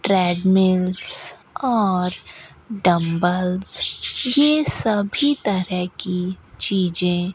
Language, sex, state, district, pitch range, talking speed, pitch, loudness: Hindi, female, Rajasthan, Bikaner, 180-210 Hz, 75 wpm, 185 Hz, -18 LUFS